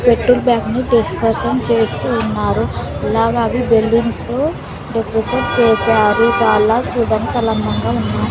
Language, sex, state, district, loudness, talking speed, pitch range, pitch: Telugu, female, Andhra Pradesh, Sri Satya Sai, -15 LUFS, 125 wpm, 220-235 Hz, 230 Hz